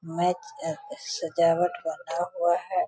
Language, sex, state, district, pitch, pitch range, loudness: Hindi, female, Bihar, Sitamarhi, 175 Hz, 165-180 Hz, -28 LUFS